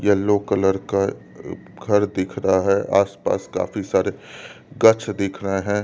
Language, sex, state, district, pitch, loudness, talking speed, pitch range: Hindi, male, Delhi, New Delhi, 100 Hz, -20 LUFS, 145 wpm, 95-105 Hz